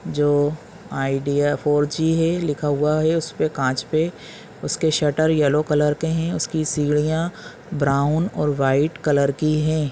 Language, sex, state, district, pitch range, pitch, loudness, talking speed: Hindi, male, Chhattisgarh, Balrampur, 145-160 Hz, 150 Hz, -21 LUFS, 150 wpm